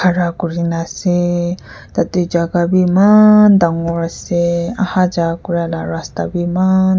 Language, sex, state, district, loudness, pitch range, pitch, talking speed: Nagamese, female, Nagaland, Kohima, -15 LUFS, 170-185 Hz, 175 Hz, 155 wpm